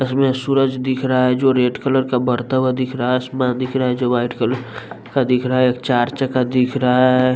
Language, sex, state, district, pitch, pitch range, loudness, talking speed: Hindi, male, Bihar, West Champaran, 130 Hz, 125-130 Hz, -18 LUFS, 245 wpm